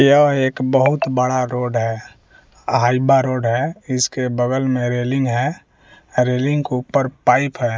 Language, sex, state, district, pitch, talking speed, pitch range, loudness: Hindi, male, Bihar, West Champaran, 130 Hz, 155 wpm, 125-135 Hz, -18 LUFS